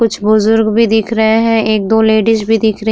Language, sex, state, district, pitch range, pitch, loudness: Hindi, female, Uttar Pradesh, Muzaffarnagar, 215-225 Hz, 220 Hz, -11 LUFS